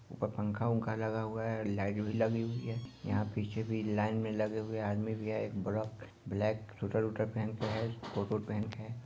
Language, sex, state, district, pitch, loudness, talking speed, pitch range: Hindi, male, Bihar, Sitamarhi, 110 Hz, -36 LUFS, 225 wpm, 105-110 Hz